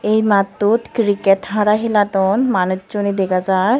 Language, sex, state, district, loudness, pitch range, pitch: Chakma, female, Tripura, Unakoti, -16 LUFS, 195-215 Hz, 205 Hz